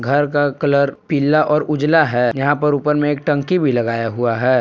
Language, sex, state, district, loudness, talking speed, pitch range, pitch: Hindi, male, Jharkhand, Palamu, -17 LUFS, 220 wpm, 130-150 Hz, 145 Hz